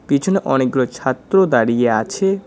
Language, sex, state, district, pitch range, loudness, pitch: Bengali, male, West Bengal, Cooch Behar, 120-190 Hz, -17 LUFS, 130 Hz